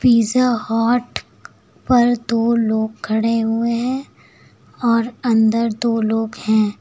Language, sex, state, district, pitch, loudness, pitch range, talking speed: Hindi, female, Uttar Pradesh, Lucknow, 230 Hz, -18 LUFS, 220-240 Hz, 115 wpm